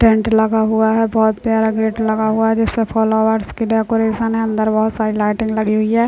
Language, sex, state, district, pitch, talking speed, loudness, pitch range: Hindi, female, Chhattisgarh, Bilaspur, 220 Hz, 215 wpm, -16 LUFS, 220-225 Hz